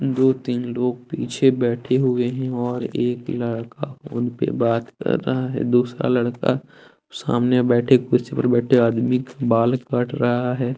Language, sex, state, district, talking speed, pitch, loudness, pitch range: Hindi, male, Jharkhand, Deoghar, 160 wpm, 125 Hz, -21 LUFS, 120-130 Hz